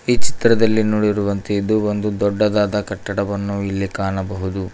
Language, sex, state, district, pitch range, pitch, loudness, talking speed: Kannada, male, Karnataka, Koppal, 100-105 Hz, 100 Hz, -19 LUFS, 115 wpm